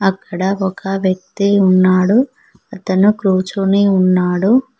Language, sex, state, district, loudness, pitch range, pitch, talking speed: Telugu, female, Telangana, Mahabubabad, -14 LUFS, 185-200 Hz, 195 Hz, 85 wpm